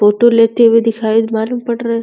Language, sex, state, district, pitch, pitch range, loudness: Hindi, female, Uttar Pradesh, Deoria, 230 Hz, 220-235 Hz, -12 LUFS